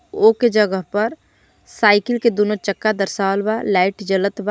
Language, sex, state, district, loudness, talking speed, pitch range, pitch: Bhojpuri, female, Jharkhand, Palamu, -18 LUFS, 175 wpm, 195-225 Hz, 210 Hz